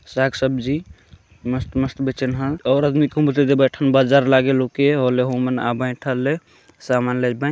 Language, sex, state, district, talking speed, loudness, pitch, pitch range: Chhattisgarhi, male, Chhattisgarh, Jashpur, 145 wpm, -19 LUFS, 130 Hz, 125-140 Hz